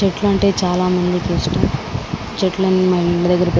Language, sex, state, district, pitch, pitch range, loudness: Telugu, female, Andhra Pradesh, Srikakulam, 180 Hz, 180-190 Hz, -17 LUFS